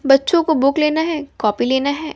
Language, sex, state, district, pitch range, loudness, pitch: Hindi, female, Bihar, West Champaran, 270-315 Hz, -17 LUFS, 290 Hz